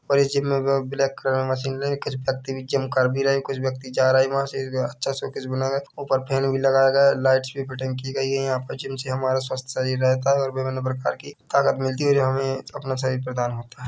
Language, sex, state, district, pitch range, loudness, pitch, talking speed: Hindi, male, Chhattisgarh, Bilaspur, 130-135 Hz, -23 LUFS, 135 Hz, 270 wpm